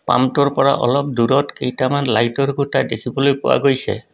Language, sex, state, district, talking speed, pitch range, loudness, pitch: Assamese, male, Assam, Kamrup Metropolitan, 145 wpm, 125-140 Hz, -17 LUFS, 135 Hz